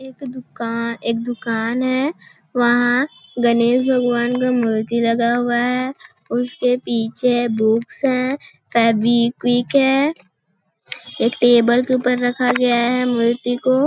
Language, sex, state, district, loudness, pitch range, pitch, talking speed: Hindi, female, Chhattisgarh, Balrampur, -18 LUFS, 235-255 Hz, 245 Hz, 125 wpm